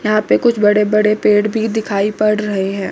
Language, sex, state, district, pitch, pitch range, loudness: Hindi, female, Chandigarh, Chandigarh, 210 Hz, 210-215 Hz, -15 LUFS